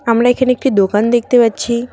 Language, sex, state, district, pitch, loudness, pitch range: Bengali, female, West Bengal, Cooch Behar, 240 Hz, -13 LUFS, 225-250 Hz